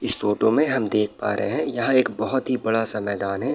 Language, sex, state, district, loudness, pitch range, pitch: Hindi, male, Bihar, Saharsa, -22 LUFS, 105-130 Hz, 110 Hz